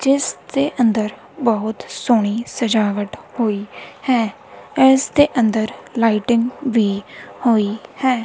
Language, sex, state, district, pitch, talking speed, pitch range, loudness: Punjabi, female, Punjab, Kapurthala, 230 Hz, 110 wpm, 215-255 Hz, -18 LUFS